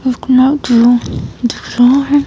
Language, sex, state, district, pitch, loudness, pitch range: Hindi, female, Himachal Pradesh, Shimla, 255 Hz, -11 LUFS, 240-275 Hz